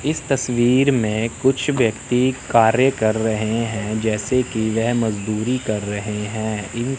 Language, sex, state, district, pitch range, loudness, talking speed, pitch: Hindi, male, Chandigarh, Chandigarh, 110-125 Hz, -20 LUFS, 135 wpm, 115 Hz